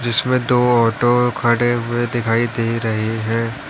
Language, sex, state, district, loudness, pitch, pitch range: Hindi, male, Uttar Pradesh, Lalitpur, -17 LUFS, 120 Hz, 115-120 Hz